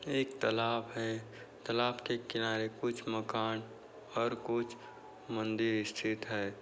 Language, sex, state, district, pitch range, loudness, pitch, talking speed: Hindi, male, Uttar Pradesh, Budaun, 110-120 Hz, -36 LUFS, 115 Hz, 120 wpm